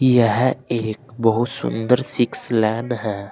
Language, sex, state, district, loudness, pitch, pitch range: Hindi, male, Uttar Pradesh, Saharanpur, -20 LUFS, 120 Hz, 110-125 Hz